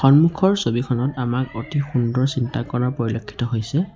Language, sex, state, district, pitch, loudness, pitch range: Assamese, male, Assam, Sonitpur, 125 Hz, -21 LUFS, 120-140 Hz